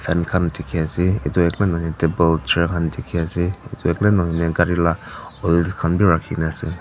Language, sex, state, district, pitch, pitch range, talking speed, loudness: Nagamese, female, Nagaland, Dimapur, 85 Hz, 85-90 Hz, 195 wpm, -20 LUFS